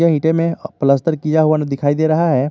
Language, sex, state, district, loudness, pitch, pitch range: Hindi, male, Jharkhand, Garhwa, -16 LUFS, 155 Hz, 145-165 Hz